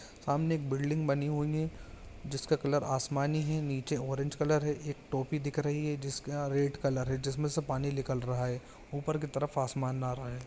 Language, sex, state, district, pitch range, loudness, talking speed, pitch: Hindi, male, Chhattisgarh, Bilaspur, 130-150 Hz, -33 LUFS, 205 wpm, 140 Hz